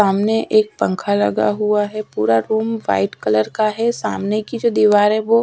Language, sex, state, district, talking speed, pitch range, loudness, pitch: Hindi, female, Odisha, Sambalpur, 200 wpm, 185-220 Hz, -17 LUFS, 210 Hz